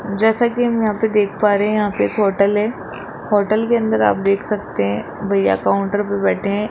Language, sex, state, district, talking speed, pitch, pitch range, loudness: Hindi, male, Rajasthan, Jaipur, 230 wpm, 205 Hz, 200-220 Hz, -17 LUFS